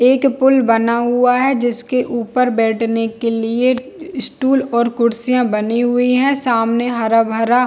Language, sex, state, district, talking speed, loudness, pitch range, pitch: Hindi, female, Chhattisgarh, Bilaspur, 165 wpm, -16 LUFS, 230-255 Hz, 240 Hz